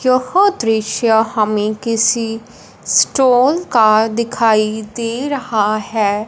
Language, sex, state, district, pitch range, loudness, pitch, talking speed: Hindi, female, Punjab, Fazilka, 215-250 Hz, -15 LUFS, 225 Hz, 95 wpm